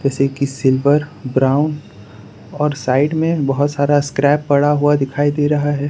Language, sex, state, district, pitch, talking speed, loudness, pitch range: Hindi, male, Gujarat, Valsad, 145 Hz, 165 wpm, -16 LUFS, 135-145 Hz